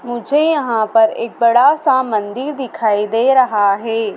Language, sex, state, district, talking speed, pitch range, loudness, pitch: Hindi, female, Madhya Pradesh, Dhar, 160 wpm, 215-260 Hz, -15 LUFS, 235 Hz